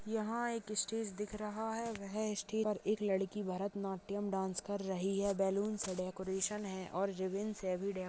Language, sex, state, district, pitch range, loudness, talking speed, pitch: Hindi, female, Maharashtra, Dhule, 190-215 Hz, -38 LUFS, 180 wpm, 200 Hz